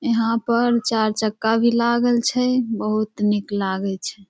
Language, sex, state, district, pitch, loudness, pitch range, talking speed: Maithili, female, Bihar, Samastipur, 225 Hz, -20 LUFS, 210-235 Hz, 155 wpm